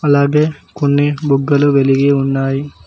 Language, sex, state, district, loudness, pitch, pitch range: Telugu, male, Telangana, Mahabubabad, -14 LUFS, 140 Hz, 135-145 Hz